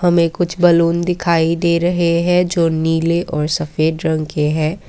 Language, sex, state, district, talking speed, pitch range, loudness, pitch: Hindi, female, Assam, Kamrup Metropolitan, 170 wpm, 160-175 Hz, -16 LUFS, 170 Hz